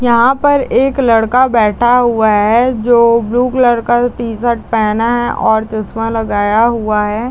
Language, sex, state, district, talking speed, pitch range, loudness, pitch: Hindi, female, Bihar, Madhepura, 155 wpm, 220-245 Hz, -12 LUFS, 235 Hz